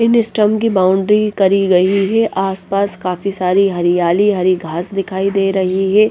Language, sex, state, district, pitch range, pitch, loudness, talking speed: Hindi, female, Bihar, West Champaran, 185-205 Hz, 195 Hz, -15 LUFS, 165 wpm